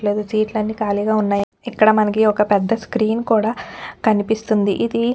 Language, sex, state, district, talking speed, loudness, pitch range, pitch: Telugu, female, Telangana, Nalgonda, 115 wpm, -18 LUFS, 210-220 Hz, 215 Hz